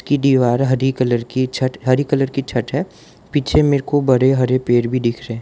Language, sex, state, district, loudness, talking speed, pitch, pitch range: Hindi, male, Gujarat, Valsad, -17 LUFS, 220 wpm, 130 Hz, 125-140 Hz